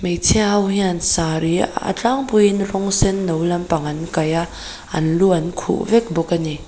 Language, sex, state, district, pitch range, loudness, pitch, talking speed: Mizo, female, Mizoram, Aizawl, 165-200 Hz, -18 LUFS, 175 Hz, 170 wpm